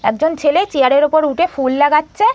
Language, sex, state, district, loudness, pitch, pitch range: Bengali, female, West Bengal, Malda, -14 LUFS, 300 Hz, 285-325 Hz